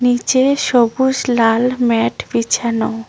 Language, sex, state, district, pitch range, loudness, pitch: Bengali, female, West Bengal, Cooch Behar, 230-255 Hz, -15 LUFS, 240 Hz